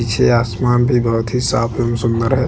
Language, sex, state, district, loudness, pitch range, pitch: Hindi, male, Chhattisgarh, Bastar, -16 LUFS, 115-125 Hz, 120 Hz